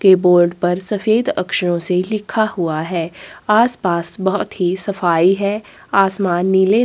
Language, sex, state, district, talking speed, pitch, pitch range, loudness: Hindi, female, Chhattisgarh, Korba, 140 wpm, 190 Hz, 175-210 Hz, -17 LUFS